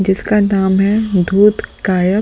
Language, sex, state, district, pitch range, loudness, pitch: Hindi, male, Delhi, New Delhi, 190-210 Hz, -14 LUFS, 195 Hz